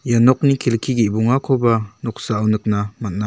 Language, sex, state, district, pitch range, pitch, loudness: Garo, male, Meghalaya, South Garo Hills, 110-125 Hz, 115 Hz, -18 LUFS